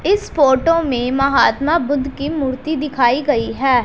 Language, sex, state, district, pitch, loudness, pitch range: Hindi, female, Punjab, Pathankot, 275 Hz, -16 LUFS, 260-300 Hz